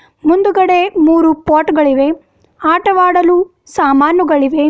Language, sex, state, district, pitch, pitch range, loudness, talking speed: Kannada, female, Karnataka, Bidar, 330 Hz, 305-360 Hz, -11 LUFS, 75 wpm